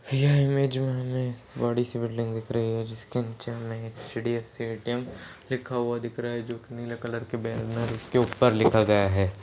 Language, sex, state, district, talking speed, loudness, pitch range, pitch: Hindi, male, Goa, North and South Goa, 195 wpm, -28 LUFS, 115-125 Hz, 120 Hz